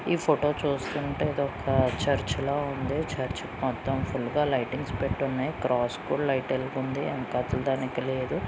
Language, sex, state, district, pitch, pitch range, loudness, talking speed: Telugu, female, Andhra Pradesh, Srikakulam, 135 Hz, 130-140 Hz, -28 LUFS, 150 wpm